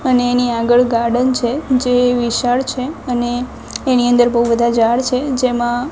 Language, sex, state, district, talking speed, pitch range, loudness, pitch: Gujarati, female, Gujarat, Gandhinagar, 170 wpm, 240-255 Hz, -15 LUFS, 245 Hz